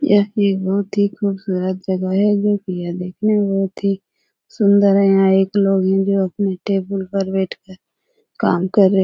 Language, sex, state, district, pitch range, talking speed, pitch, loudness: Hindi, female, Bihar, Jahanabad, 190-205 Hz, 180 wpm, 195 Hz, -18 LUFS